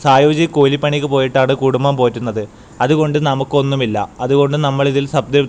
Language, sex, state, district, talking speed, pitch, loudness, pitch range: Malayalam, male, Kerala, Kasaragod, 130 wpm, 140 Hz, -15 LUFS, 125-145 Hz